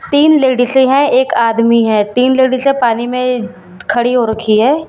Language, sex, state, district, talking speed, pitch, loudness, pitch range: Hindi, female, Bihar, Katihar, 170 wpm, 250 Hz, -12 LUFS, 230-265 Hz